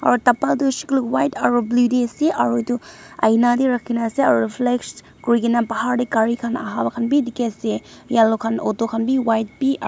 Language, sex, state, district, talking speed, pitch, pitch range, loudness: Nagamese, female, Nagaland, Dimapur, 210 wpm, 240 Hz, 225-255 Hz, -19 LUFS